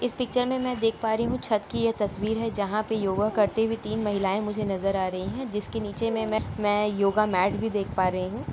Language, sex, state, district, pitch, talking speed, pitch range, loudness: Hindi, female, Uttar Pradesh, Budaun, 215 Hz, 265 wpm, 200-225 Hz, -26 LUFS